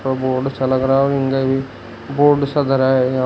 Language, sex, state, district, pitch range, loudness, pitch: Hindi, male, Uttar Pradesh, Shamli, 130-135 Hz, -17 LUFS, 135 Hz